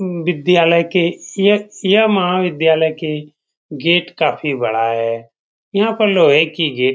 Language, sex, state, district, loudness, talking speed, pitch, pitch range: Hindi, male, Bihar, Saran, -15 LUFS, 130 wpm, 170 Hz, 150-185 Hz